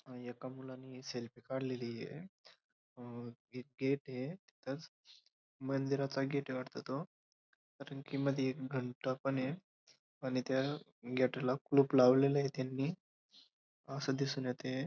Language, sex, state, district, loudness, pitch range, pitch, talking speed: Marathi, male, Maharashtra, Dhule, -38 LUFS, 130-140 Hz, 130 Hz, 135 wpm